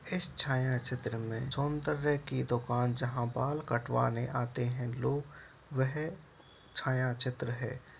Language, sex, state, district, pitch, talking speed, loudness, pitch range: Hindi, male, Bihar, Purnia, 130 Hz, 130 wpm, -34 LUFS, 120-145 Hz